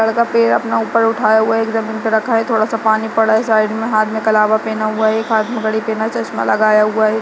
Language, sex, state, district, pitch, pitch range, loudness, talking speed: Hindi, female, Uttarakhand, Uttarkashi, 220 Hz, 215-225 Hz, -15 LUFS, 290 wpm